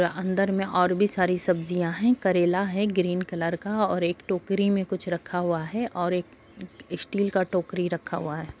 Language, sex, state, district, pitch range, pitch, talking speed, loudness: Hindi, female, Bihar, Gopalganj, 175-195 Hz, 180 Hz, 195 wpm, -26 LUFS